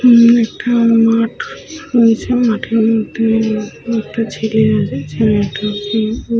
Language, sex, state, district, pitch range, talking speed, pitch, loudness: Bengali, female, Jharkhand, Sahebganj, 215-235 Hz, 105 wpm, 225 Hz, -14 LUFS